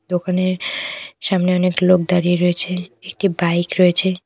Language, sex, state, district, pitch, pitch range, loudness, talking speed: Bengali, female, West Bengal, Cooch Behar, 180 Hz, 180-185 Hz, -17 LUFS, 125 wpm